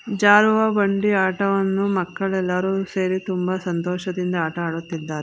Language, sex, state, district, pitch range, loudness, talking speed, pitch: Kannada, female, Karnataka, Bangalore, 180-195 Hz, -21 LUFS, 105 wpm, 190 Hz